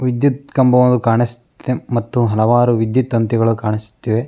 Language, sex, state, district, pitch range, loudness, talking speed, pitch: Kannada, male, Karnataka, Mysore, 115-125 Hz, -16 LUFS, 110 wpm, 120 Hz